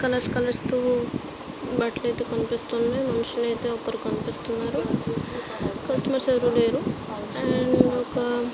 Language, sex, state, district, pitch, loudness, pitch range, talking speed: Telugu, female, Andhra Pradesh, Visakhapatnam, 245 Hz, -25 LUFS, 235-250 Hz, 120 wpm